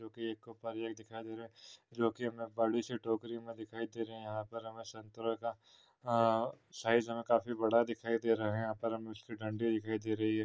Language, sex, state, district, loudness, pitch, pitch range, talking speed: Hindi, male, Maharashtra, Pune, -37 LUFS, 115 Hz, 110-115 Hz, 230 wpm